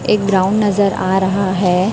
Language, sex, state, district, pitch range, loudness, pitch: Hindi, female, Chhattisgarh, Raipur, 190-200 Hz, -15 LUFS, 190 Hz